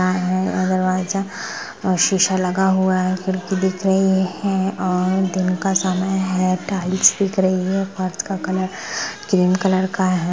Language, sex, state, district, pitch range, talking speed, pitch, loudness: Hindi, female, Chhattisgarh, Rajnandgaon, 185-190 Hz, 155 wpm, 185 Hz, -19 LUFS